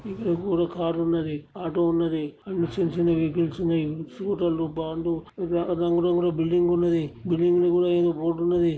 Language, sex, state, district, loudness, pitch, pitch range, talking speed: Telugu, male, Telangana, Nalgonda, -25 LUFS, 170 Hz, 165-175 Hz, 165 wpm